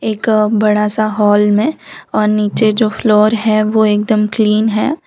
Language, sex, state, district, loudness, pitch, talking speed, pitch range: Hindi, female, Gujarat, Valsad, -13 LUFS, 215 Hz, 175 wpm, 210-220 Hz